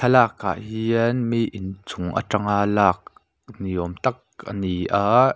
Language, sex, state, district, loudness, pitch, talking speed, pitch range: Mizo, male, Mizoram, Aizawl, -22 LUFS, 105 Hz, 125 wpm, 95-115 Hz